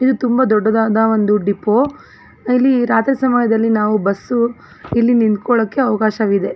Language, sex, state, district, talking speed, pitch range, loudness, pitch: Kannada, female, Karnataka, Belgaum, 120 wpm, 215-250 Hz, -15 LUFS, 225 Hz